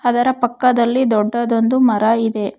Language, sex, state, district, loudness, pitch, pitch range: Kannada, female, Karnataka, Bangalore, -16 LUFS, 235 Hz, 225-250 Hz